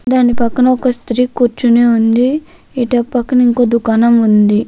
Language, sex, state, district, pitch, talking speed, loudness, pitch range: Telugu, female, Andhra Pradesh, Krishna, 245 Hz, 130 wpm, -12 LUFS, 235-250 Hz